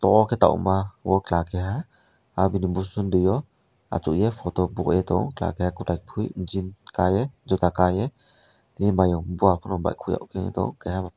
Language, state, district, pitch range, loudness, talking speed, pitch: Kokborok, Tripura, West Tripura, 90-105 Hz, -24 LUFS, 160 wpm, 95 Hz